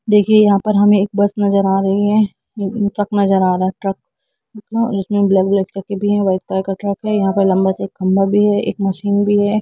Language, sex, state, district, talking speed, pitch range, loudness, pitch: Hindi, female, Jharkhand, Jamtara, 210 wpm, 195-205 Hz, -16 LUFS, 200 Hz